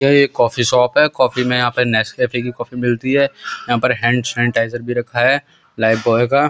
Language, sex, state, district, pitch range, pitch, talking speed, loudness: Hindi, male, Uttar Pradesh, Muzaffarnagar, 120-125 Hz, 120 Hz, 220 wpm, -16 LUFS